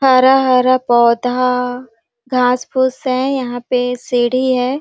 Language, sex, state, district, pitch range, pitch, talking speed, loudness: Hindi, female, Chhattisgarh, Sarguja, 245-260 Hz, 250 Hz, 135 wpm, -15 LUFS